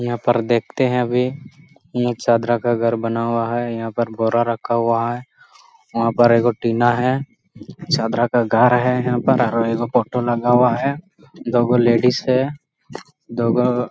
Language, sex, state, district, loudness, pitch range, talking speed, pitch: Hindi, male, Jharkhand, Sahebganj, -18 LUFS, 115-125 Hz, 185 wpm, 120 Hz